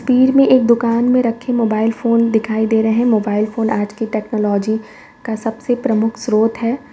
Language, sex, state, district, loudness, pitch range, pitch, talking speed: Hindi, female, Uttar Pradesh, Varanasi, -16 LUFS, 220-240 Hz, 225 Hz, 190 wpm